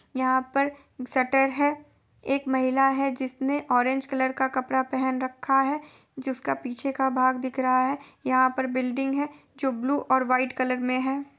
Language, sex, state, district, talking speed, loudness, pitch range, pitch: Hindi, female, Bihar, Gopalganj, 175 wpm, -26 LUFS, 255-275 Hz, 265 Hz